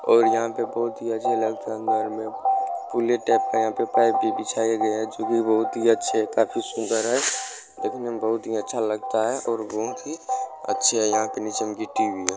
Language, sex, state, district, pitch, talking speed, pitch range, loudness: Hindi, male, Bihar, Supaul, 110 Hz, 225 wpm, 110-120 Hz, -24 LUFS